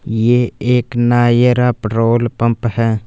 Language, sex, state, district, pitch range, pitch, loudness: Hindi, male, Punjab, Fazilka, 115-125 Hz, 120 Hz, -14 LUFS